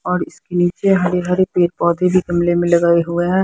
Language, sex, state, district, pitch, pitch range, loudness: Hindi, female, Haryana, Jhajjar, 175 Hz, 175-180 Hz, -16 LUFS